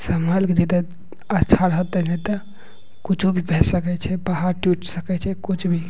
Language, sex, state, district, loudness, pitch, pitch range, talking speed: Maithili, male, Bihar, Madhepura, -21 LUFS, 180 Hz, 175-190 Hz, 185 wpm